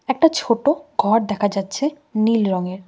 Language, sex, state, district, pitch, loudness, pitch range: Bengali, female, West Bengal, Cooch Behar, 225 Hz, -19 LUFS, 200-290 Hz